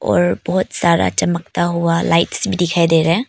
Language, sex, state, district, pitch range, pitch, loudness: Hindi, female, Arunachal Pradesh, Papum Pare, 170-175 Hz, 170 Hz, -16 LUFS